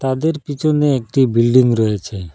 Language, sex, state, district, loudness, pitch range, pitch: Bengali, male, Assam, Hailakandi, -16 LUFS, 115-145 Hz, 130 Hz